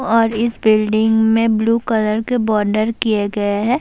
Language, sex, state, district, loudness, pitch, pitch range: Urdu, female, Bihar, Saharsa, -16 LUFS, 220 Hz, 215-230 Hz